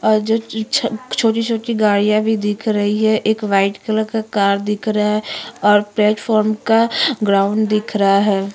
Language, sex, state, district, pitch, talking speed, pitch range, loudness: Hindi, female, Uttarakhand, Tehri Garhwal, 215 Hz, 175 wpm, 205-220 Hz, -17 LUFS